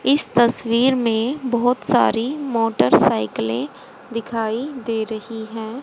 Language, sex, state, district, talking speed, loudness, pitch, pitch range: Hindi, female, Haryana, Jhajjar, 105 wpm, -19 LUFS, 235 Hz, 225-260 Hz